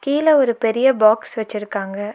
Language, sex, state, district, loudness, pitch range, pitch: Tamil, female, Tamil Nadu, Nilgiris, -17 LUFS, 210-265 Hz, 225 Hz